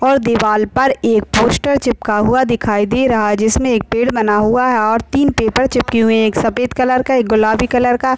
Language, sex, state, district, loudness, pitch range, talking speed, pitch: Hindi, male, Bihar, Madhepura, -14 LUFS, 220-255 Hz, 230 wpm, 235 Hz